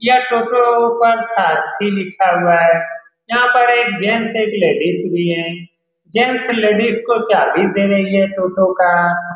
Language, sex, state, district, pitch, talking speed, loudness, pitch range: Hindi, male, Bihar, Saran, 205 Hz, 155 wpm, -14 LUFS, 175-235 Hz